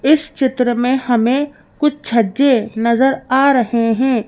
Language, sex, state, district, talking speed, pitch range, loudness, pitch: Hindi, female, Madhya Pradesh, Bhopal, 140 wpm, 235-270 Hz, -15 LUFS, 255 Hz